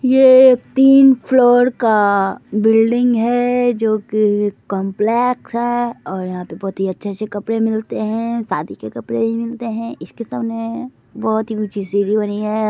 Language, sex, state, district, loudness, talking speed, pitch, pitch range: Hindi, female, Bihar, Begusarai, -16 LUFS, 155 wpm, 225 Hz, 205-240 Hz